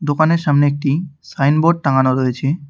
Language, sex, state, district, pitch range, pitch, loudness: Bengali, male, West Bengal, Cooch Behar, 140-160 Hz, 145 Hz, -16 LUFS